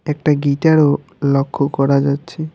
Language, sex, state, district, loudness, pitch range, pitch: Bengali, male, West Bengal, Alipurduar, -16 LUFS, 140-155 Hz, 145 Hz